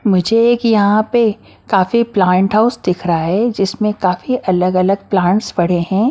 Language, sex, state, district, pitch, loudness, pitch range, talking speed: Hindi, female, Maharashtra, Mumbai Suburban, 200 Hz, -14 LUFS, 185-230 Hz, 155 wpm